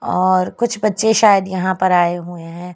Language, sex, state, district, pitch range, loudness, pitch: Hindi, female, Gujarat, Gandhinagar, 175-210 Hz, -16 LUFS, 185 Hz